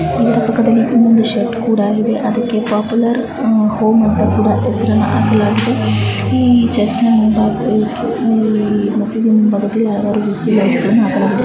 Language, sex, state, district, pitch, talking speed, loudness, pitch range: Kannada, female, Karnataka, Chamarajanagar, 220 Hz, 60 wpm, -13 LUFS, 210-230 Hz